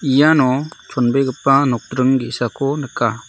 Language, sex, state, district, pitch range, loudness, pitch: Garo, male, Meghalaya, South Garo Hills, 120-140 Hz, -17 LUFS, 130 Hz